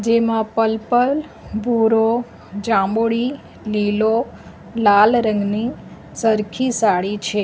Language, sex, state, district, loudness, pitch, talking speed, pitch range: Gujarati, female, Gujarat, Valsad, -18 LUFS, 225 Hz, 80 wpm, 210-230 Hz